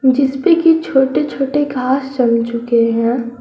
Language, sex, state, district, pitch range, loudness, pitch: Hindi, female, Jharkhand, Garhwa, 240-280 Hz, -15 LUFS, 265 Hz